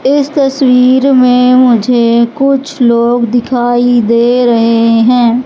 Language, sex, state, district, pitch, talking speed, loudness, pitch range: Hindi, female, Madhya Pradesh, Katni, 245 Hz, 110 wpm, -9 LUFS, 235-260 Hz